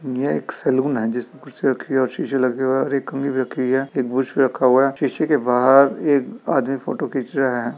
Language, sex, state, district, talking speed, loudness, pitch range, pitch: Hindi, male, Uttar Pradesh, Etah, 260 wpm, -20 LUFS, 130-135 Hz, 130 Hz